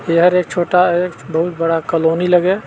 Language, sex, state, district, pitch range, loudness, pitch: Chhattisgarhi, male, Chhattisgarh, Balrampur, 165-180 Hz, -15 LUFS, 175 Hz